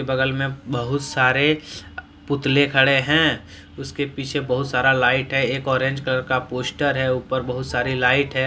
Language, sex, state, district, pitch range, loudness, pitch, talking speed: Hindi, male, Jharkhand, Deoghar, 130-140 Hz, -20 LUFS, 130 Hz, 170 wpm